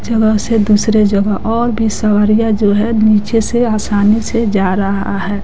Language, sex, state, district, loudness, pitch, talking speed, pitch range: Hindi, female, Bihar, West Champaran, -13 LUFS, 215 Hz, 175 wpm, 205-225 Hz